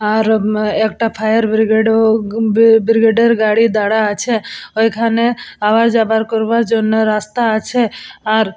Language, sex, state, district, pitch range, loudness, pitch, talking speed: Bengali, female, West Bengal, Purulia, 215-230 Hz, -14 LUFS, 220 Hz, 135 wpm